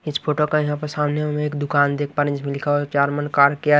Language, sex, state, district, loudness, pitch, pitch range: Hindi, male, Maharashtra, Washim, -20 LUFS, 145 Hz, 145-150 Hz